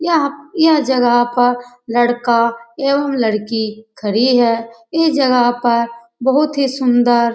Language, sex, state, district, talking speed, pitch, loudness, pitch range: Hindi, female, Bihar, Lakhisarai, 130 wpm, 245 Hz, -15 LUFS, 235-275 Hz